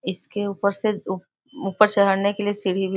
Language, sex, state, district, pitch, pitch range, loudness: Hindi, female, Bihar, Muzaffarpur, 200 Hz, 190-205 Hz, -22 LUFS